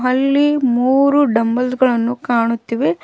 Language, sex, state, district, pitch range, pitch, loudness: Kannada, female, Karnataka, Bidar, 235-270 Hz, 250 Hz, -15 LUFS